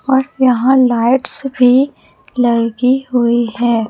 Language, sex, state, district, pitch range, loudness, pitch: Hindi, female, Chhattisgarh, Raipur, 235-265 Hz, -13 LUFS, 250 Hz